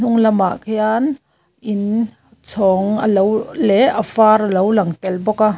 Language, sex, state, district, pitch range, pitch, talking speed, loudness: Mizo, female, Mizoram, Aizawl, 195-220 Hz, 215 Hz, 160 wpm, -16 LUFS